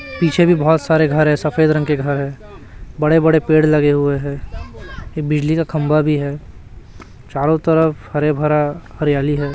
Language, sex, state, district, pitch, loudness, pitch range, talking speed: Hindi, male, Chhattisgarh, Raipur, 150 Hz, -16 LUFS, 140-155 Hz, 180 wpm